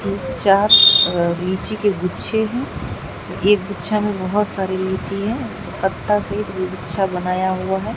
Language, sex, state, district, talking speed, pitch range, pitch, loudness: Hindi, female, Bihar, Katihar, 145 wpm, 185-210 Hz, 195 Hz, -17 LUFS